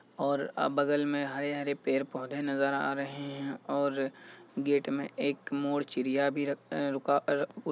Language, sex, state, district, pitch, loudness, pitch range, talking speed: Hindi, male, Bihar, Kishanganj, 140 Hz, -32 LUFS, 140-145 Hz, 165 wpm